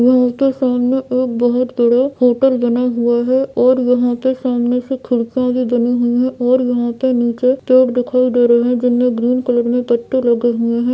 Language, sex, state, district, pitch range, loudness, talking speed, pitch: Hindi, female, Bihar, Jamui, 240-255 Hz, -15 LUFS, 205 wpm, 250 Hz